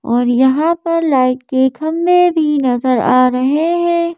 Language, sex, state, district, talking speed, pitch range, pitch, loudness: Hindi, female, Madhya Pradesh, Bhopal, 160 wpm, 255-335 Hz, 285 Hz, -14 LUFS